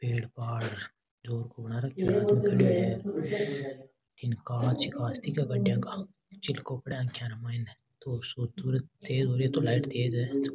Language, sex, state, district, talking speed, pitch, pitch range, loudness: Rajasthani, male, Rajasthan, Nagaur, 150 wpm, 125 Hz, 120-135 Hz, -31 LUFS